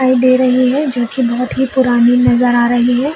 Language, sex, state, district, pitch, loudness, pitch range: Hindi, female, Chhattisgarh, Bilaspur, 250 Hz, -12 LUFS, 245-260 Hz